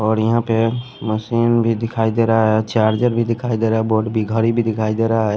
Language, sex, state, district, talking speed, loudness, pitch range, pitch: Hindi, male, Punjab, Pathankot, 255 wpm, -18 LUFS, 110-115 Hz, 115 Hz